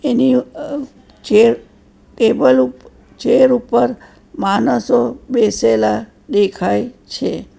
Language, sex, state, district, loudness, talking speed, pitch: Gujarati, female, Gujarat, Valsad, -15 LUFS, 85 wpm, 230 Hz